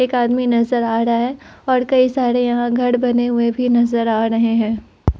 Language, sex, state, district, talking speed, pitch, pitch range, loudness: Hindi, female, Bihar, Katihar, 220 wpm, 240 Hz, 235-250 Hz, -17 LUFS